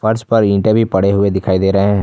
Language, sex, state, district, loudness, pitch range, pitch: Hindi, male, Jharkhand, Ranchi, -13 LUFS, 95-110 Hz, 100 Hz